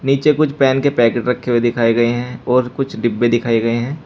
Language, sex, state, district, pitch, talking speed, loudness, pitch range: Hindi, male, Uttar Pradesh, Shamli, 120 Hz, 235 wpm, -16 LUFS, 120-135 Hz